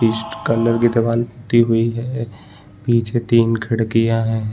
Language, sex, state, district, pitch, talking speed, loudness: Hindi, male, Chhattisgarh, Balrampur, 115 Hz, 145 wpm, -18 LUFS